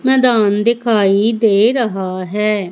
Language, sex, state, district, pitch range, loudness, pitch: Hindi, female, Madhya Pradesh, Umaria, 200-235 Hz, -14 LUFS, 215 Hz